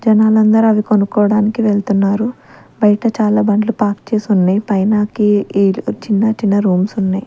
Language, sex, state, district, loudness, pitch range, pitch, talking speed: Telugu, female, Andhra Pradesh, Sri Satya Sai, -14 LUFS, 200-220 Hz, 210 Hz, 130 wpm